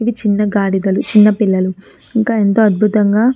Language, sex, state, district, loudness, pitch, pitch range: Telugu, female, Andhra Pradesh, Chittoor, -13 LUFS, 210 Hz, 200-220 Hz